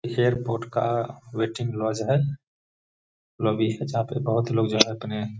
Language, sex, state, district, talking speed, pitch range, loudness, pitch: Hindi, male, Bihar, Gaya, 145 wpm, 110-120 Hz, -25 LUFS, 115 Hz